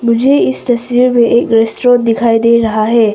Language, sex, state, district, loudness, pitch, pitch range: Hindi, female, Arunachal Pradesh, Papum Pare, -11 LUFS, 235 Hz, 225-240 Hz